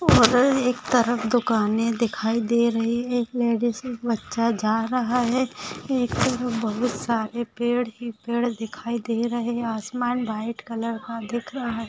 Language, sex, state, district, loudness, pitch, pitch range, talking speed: Hindi, female, Maharashtra, Dhule, -24 LUFS, 235 Hz, 230-245 Hz, 165 wpm